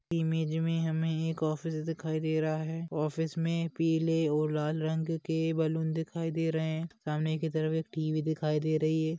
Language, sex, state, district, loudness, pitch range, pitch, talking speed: Hindi, male, Maharashtra, Aurangabad, -31 LUFS, 155-165 Hz, 160 Hz, 190 wpm